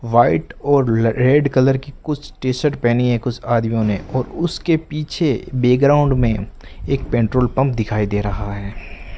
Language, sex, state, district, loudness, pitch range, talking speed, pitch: Hindi, male, Rajasthan, Bikaner, -18 LUFS, 115-140 Hz, 165 wpm, 125 Hz